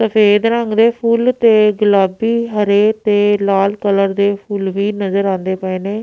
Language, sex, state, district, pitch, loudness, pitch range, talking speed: Punjabi, female, Punjab, Pathankot, 205 Hz, -14 LUFS, 200-220 Hz, 170 wpm